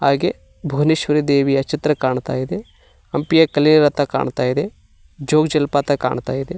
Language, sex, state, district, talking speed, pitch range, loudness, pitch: Kannada, male, Karnataka, Koppal, 135 wpm, 140-150 Hz, -18 LUFS, 145 Hz